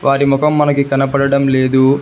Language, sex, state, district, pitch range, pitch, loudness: Telugu, male, Telangana, Hyderabad, 135-140 Hz, 140 Hz, -13 LUFS